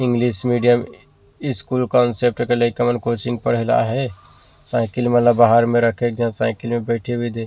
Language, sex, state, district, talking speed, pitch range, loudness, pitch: Chhattisgarhi, male, Chhattisgarh, Rajnandgaon, 215 wpm, 115-120 Hz, -19 LUFS, 120 Hz